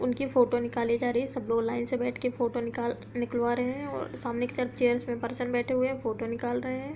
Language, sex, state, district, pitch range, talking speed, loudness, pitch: Hindi, female, Uttar Pradesh, Hamirpur, 240-250 Hz, 250 wpm, -30 LUFS, 245 Hz